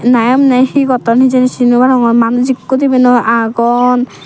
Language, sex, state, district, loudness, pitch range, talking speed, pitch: Chakma, female, Tripura, Dhalai, -10 LUFS, 235-255 Hz, 170 wpm, 250 Hz